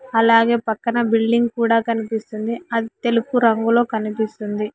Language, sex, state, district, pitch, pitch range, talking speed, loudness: Telugu, male, Telangana, Hyderabad, 230 Hz, 220-235 Hz, 115 wpm, -19 LUFS